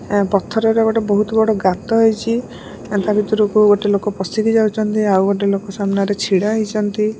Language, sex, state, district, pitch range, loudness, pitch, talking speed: Odia, female, Odisha, Malkangiri, 200-220 Hz, -16 LUFS, 210 Hz, 160 wpm